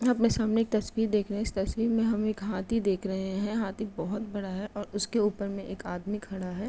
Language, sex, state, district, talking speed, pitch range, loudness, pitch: Hindi, female, Uttar Pradesh, Etah, 250 wpm, 195-220 Hz, -30 LUFS, 210 Hz